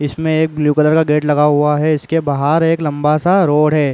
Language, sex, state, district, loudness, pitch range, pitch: Hindi, male, Uttar Pradesh, Muzaffarnagar, -14 LUFS, 150-160 Hz, 150 Hz